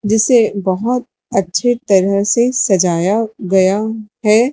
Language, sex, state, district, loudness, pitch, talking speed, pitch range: Hindi, female, Madhya Pradesh, Dhar, -15 LUFS, 215 Hz, 105 wpm, 195-235 Hz